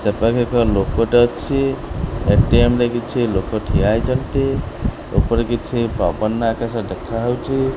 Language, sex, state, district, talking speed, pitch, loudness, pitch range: Odia, male, Odisha, Khordha, 125 wpm, 115 Hz, -18 LUFS, 105-120 Hz